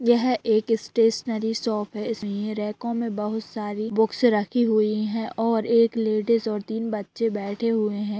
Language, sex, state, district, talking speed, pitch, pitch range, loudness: Hindi, female, Bihar, Saran, 185 wpm, 220 Hz, 210-230 Hz, -24 LUFS